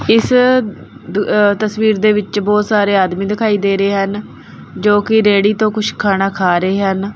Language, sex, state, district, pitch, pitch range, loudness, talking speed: Punjabi, female, Punjab, Kapurthala, 205 Hz, 195-215 Hz, -14 LUFS, 170 wpm